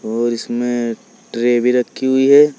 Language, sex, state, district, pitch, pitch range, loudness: Hindi, male, Uttar Pradesh, Saharanpur, 120 Hz, 120-130 Hz, -16 LUFS